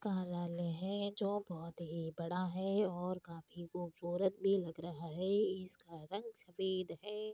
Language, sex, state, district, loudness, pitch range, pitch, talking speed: Hindi, female, Uttar Pradesh, Deoria, -40 LUFS, 170-195 Hz, 185 Hz, 140 wpm